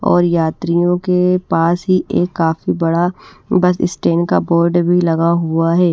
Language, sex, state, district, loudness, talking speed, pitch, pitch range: Hindi, female, Maharashtra, Mumbai Suburban, -15 LUFS, 160 wpm, 175 Hz, 165-180 Hz